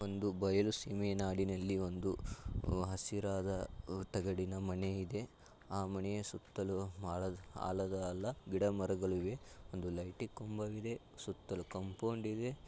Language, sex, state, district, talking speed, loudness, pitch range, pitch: Kannada, male, Karnataka, Shimoga, 115 wpm, -41 LUFS, 95-105 Hz, 95 Hz